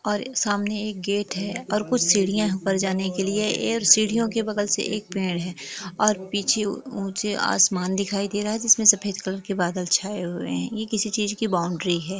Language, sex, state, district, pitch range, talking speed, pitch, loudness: Hindi, female, Chhattisgarh, Bilaspur, 190-210 Hz, 210 wpm, 200 Hz, -23 LUFS